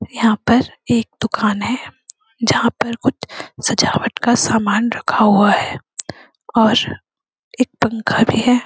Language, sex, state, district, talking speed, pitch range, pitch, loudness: Hindi, female, Uttarakhand, Uttarkashi, 130 wpm, 220-245 Hz, 235 Hz, -17 LUFS